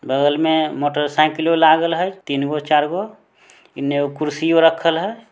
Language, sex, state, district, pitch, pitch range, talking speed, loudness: Maithili, male, Bihar, Samastipur, 160 Hz, 145-165 Hz, 160 wpm, -18 LUFS